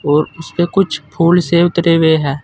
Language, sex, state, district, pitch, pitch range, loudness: Hindi, male, Uttar Pradesh, Saharanpur, 165 Hz, 155-175 Hz, -14 LUFS